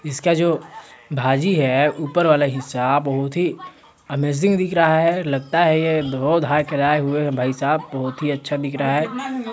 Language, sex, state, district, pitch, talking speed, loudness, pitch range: Hindi, male, Chhattisgarh, Sarguja, 150 Hz, 190 wpm, -19 LUFS, 140-170 Hz